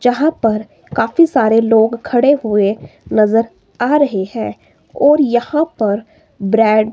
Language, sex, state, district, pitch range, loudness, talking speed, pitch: Hindi, female, Himachal Pradesh, Shimla, 215-280 Hz, -14 LUFS, 140 wpm, 225 Hz